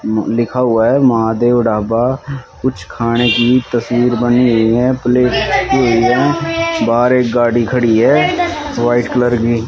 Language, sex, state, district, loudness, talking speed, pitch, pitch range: Hindi, male, Haryana, Rohtak, -13 LUFS, 150 wpm, 120 Hz, 115-130 Hz